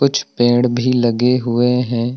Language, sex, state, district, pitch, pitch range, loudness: Hindi, male, Uttar Pradesh, Lucknow, 125 Hz, 120-125 Hz, -16 LUFS